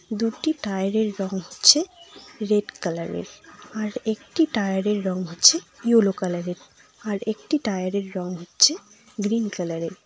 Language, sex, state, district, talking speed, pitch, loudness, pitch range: Bengali, female, West Bengal, Cooch Behar, 125 wpm, 210 Hz, -22 LUFS, 190-235 Hz